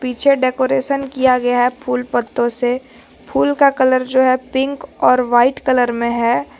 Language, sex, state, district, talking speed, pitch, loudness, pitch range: Hindi, female, Jharkhand, Garhwa, 175 wpm, 255 Hz, -16 LUFS, 245-265 Hz